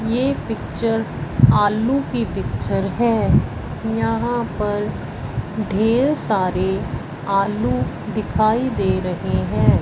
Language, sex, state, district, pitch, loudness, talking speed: Hindi, female, Punjab, Fazilka, 200 Hz, -20 LUFS, 90 wpm